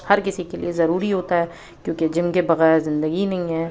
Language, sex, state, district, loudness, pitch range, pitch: Hindi, female, Delhi, New Delhi, -21 LUFS, 165-180 Hz, 170 Hz